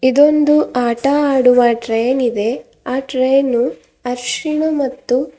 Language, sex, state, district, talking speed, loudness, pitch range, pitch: Kannada, female, Karnataka, Bidar, 100 wpm, -15 LUFS, 245-280 Hz, 255 Hz